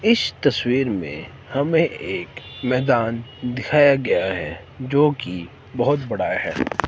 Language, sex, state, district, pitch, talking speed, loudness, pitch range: Hindi, male, Himachal Pradesh, Shimla, 130 Hz, 120 wpm, -21 LUFS, 120-145 Hz